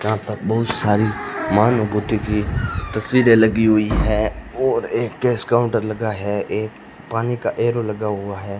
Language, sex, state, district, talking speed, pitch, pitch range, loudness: Hindi, male, Rajasthan, Bikaner, 160 wpm, 110 Hz, 105-115 Hz, -19 LUFS